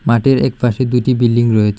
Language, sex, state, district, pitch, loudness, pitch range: Bengali, male, Tripura, South Tripura, 120 Hz, -14 LUFS, 115-125 Hz